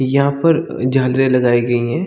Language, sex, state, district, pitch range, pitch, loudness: Hindi, male, Chhattisgarh, Bilaspur, 120-140 Hz, 130 Hz, -15 LUFS